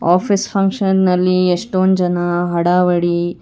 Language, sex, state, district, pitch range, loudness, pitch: Kannada, female, Karnataka, Bangalore, 175-190 Hz, -15 LUFS, 180 Hz